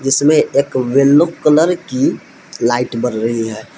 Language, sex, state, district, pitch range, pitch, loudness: Hindi, male, Jharkhand, Palamu, 120-150 Hz, 135 Hz, -14 LUFS